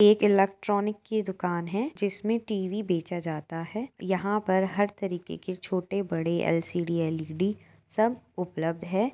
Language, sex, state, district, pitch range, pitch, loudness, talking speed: Hindi, female, Uttar Pradesh, Etah, 175-210 Hz, 190 Hz, -29 LUFS, 145 wpm